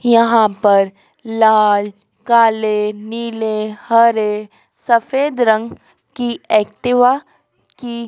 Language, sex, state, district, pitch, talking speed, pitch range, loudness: Hindi, female, Madhya Pradesh, Dhar, 225 Hz, 80 wpm, 210-235 Hz, -15 LUFS